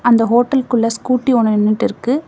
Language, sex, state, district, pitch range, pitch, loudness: Tamil, female, Tamil Nadu, Namakkal, 230-255 Hz, 240 Hz, -15 LUFS